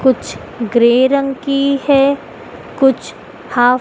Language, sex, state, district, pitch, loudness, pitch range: Hindi, female, Madhya Pradesh, Dhar, 270 Hz, -14 LUFS, 245-275 Hz